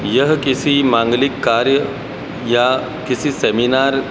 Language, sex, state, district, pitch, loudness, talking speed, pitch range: Hindi, male, Madhya Pradesh, Dhar, 135 Hz, -16 LUFS, 115 wpm, 120-140 Hz